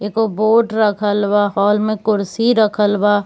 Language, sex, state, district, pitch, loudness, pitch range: Hindi, female, Bihar, Kishanganj, 210 Hz, -16 LUFS, 205-220 Hz